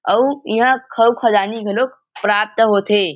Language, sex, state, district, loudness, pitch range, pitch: Chhattisgarhi, male, Chhattisgarh, Rajnandgaon, -16 LUFS, 210-250 Hz, 225 Hz